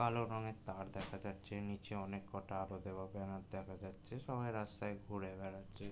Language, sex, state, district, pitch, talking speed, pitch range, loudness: Bengali, male, West Bengal, Jalpaiguri, 100 Hz, 170 wpm, 95-105 Hz, -46 LUFS